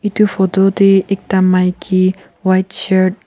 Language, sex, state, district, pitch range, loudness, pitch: Nagamese, female, Nagaland, Kohima, 185-195 Hz, -14 LUFS, 190 Hz